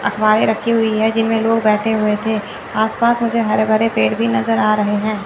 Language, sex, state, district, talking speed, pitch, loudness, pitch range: Hindi, female, Chandigarh, Chandigarh, 230 wpm, 215 Hz, -16 LUFS, 210-225 Hz